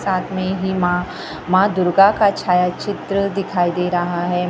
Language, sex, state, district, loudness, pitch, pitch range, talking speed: Hindi, female, Maharashtra, Gondia, -18 LUFS, 185 Hz, 180-195 Hz, 175 wpm